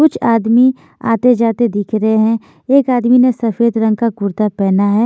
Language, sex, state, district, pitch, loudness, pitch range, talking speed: Hindi, female, Maharashtra, Washim, 230 Hz, -13 LUFS, 215-245 Hz, 180 wpm